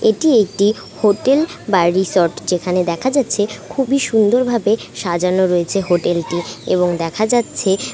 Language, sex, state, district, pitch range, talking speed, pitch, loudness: Bengali, female, West Bengal, Kolkata, 175-225 Hz, 135 wpm, 195 Hz, -16 LUFS